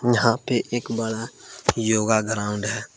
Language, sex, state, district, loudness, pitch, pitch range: Hindi, male, Jharkhand, Palamu, -23 LUFS, 115 Hz, 110-120 Hz